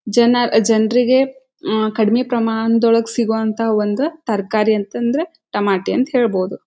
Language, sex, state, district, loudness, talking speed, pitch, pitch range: Kannada, female, Karnataka, Dharwad, -17 LUFS, 125 wpm, 225 Hz, 215-245 Hz